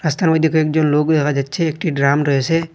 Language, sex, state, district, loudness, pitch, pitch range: Bengali, male, Assam, Hailakandi, -16 LUFS, 155 Hz, 145-160 Hz